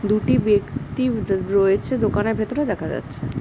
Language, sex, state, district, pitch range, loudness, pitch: Bengali, female, West Bengal, Jhargram, 195-220 Hz, -21 LUFS, 205 Hz